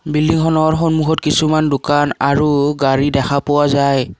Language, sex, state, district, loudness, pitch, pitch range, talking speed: Assamese, male, Assam, Kamrup Metropolitan, -15 LUFS, 145 Hz, 140-155 Hz, 130 wpm